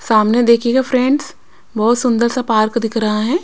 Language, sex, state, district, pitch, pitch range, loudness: Hindi, female, Punjab, Kapurthala, 235 Hz, 225-255 Hz, -15 LUFS